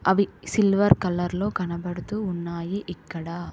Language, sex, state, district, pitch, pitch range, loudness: Telugu, female, Telangana, Hyderabad, 180 Hz, 170-200 Hz, -25 LUFS